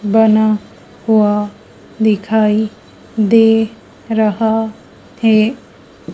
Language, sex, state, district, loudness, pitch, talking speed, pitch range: Hindi, female, Madhya Pradesh, Dhar, -14 LUFS, 220 Hz, 60 wpm, 215-225 Hz